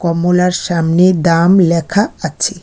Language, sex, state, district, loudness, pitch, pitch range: Bengali, female, West Bengal, Alipurduar, -12 LUFS, 175 Hz, 170-180 Hz